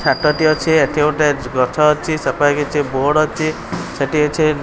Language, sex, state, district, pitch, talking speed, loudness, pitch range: Odia, male, Odisha, Khordha, 150 Hz, 170 wpm, -16 LUFS, 145-155 Hz